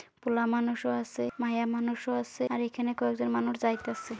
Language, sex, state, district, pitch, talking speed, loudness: Bengali, female, West Bengal, Kolkata, 230 Hz, 170 wpm, -31 LUFS